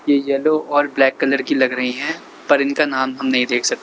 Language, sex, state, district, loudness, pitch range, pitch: Hindi, male, Uttar Pradesh, Lalitpur, -18 LUFS, 130-145 Hz, 135 Hz